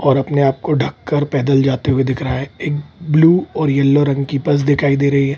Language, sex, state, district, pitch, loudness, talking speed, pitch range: Hindi, male, Bihar, Kishanganj, 140 Hz, -16 LUFS, 255 wpm, 135-145 Hz